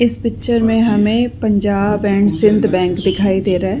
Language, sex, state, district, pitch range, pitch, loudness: Hindi, female, Chhattisgarh, Rajnandgaon, 195-225 Hz, 210 Hz, -15 LUFS